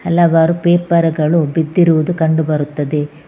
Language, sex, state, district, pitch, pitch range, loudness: Kannada, female, Karnataka, Bangalore, 160 Hz, 155-170 Hz, -14 LUFS